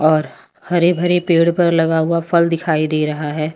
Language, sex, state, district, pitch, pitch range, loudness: Hindi, female, Uttar Pradesh, Lalitpur, 165 Hz, 155-170 Hz, -16 LUFS